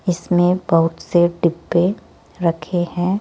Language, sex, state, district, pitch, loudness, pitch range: Hindi, female, Rajasthan, Jaipur, 175 Hz, -18 LUFS, 170-180 Hz